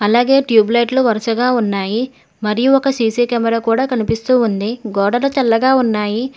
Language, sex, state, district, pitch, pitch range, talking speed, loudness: Telugu, female, Telangana, Hyderabad, 235 Hz, 220-255 Hz, 140 wpm, -15 LUFS